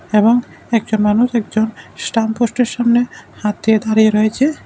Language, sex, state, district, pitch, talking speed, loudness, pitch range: Bengali, male, Tripura, West Tripura, 220 Hz, 155 wpm, -16 LUFS, 215-240 Hz